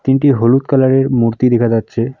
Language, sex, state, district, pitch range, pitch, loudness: Bengali, female, West Bengal, Alipurduar, 115-135 Hz, 130 Hz, -13 LUFS